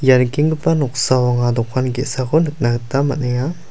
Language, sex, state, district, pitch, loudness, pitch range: Garo, male, Meghalaya, South Garo Hills, 130 Hz, -17 LUFS, 125-145 Hz